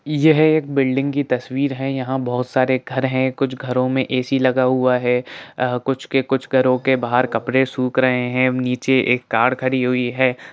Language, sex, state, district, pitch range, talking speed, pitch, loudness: Hindi, male, Bihar, Jahanabad, 125-135 Hz, 210 wpm, 130 Hz, -19 LUFS